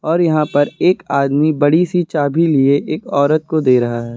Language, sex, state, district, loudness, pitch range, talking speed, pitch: Hindi, male, Uttar Pradesh, Lucknow, -15 LUFS, 140-160 Hz, 215 wpm, 150 Hz